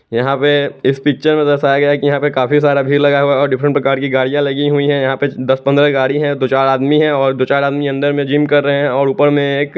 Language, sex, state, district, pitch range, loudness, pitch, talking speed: Hindi, male, Chandigarh, Chandigarh, 135-145 Hz, -13 LUFS, 140 Hz, 300 wpm